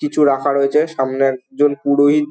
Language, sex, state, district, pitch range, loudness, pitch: Bengali, male, West Bengal, Dakshin Dinajpur, 140-150 Hz, -16 LUFS, 145 Hz